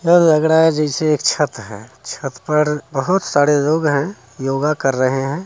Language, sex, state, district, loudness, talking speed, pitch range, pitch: Hindi, male, Bihar, Muzaffarpur, -17 LUFS, 210 wpm, 135-155 Hz, 150 Hz